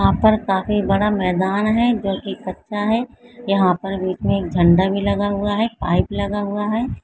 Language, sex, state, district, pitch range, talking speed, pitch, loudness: Hindi, female, Bihar, Jamui, 190-210 Hz, 205 wpm, 200 Hz, -19 LUFS